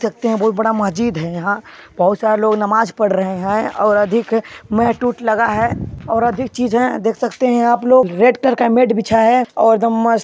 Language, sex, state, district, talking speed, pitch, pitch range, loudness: Hindi, male, Chhattisgarh, Sarguja, 240 wpm, 225 Hz, 215-240 Hz, -15 LUFS